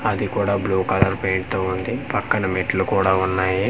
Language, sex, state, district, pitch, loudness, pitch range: Telugu, male, Andhra Pradesh, Manyam, 95 Hz, -21 LUFS, 95-100 Hz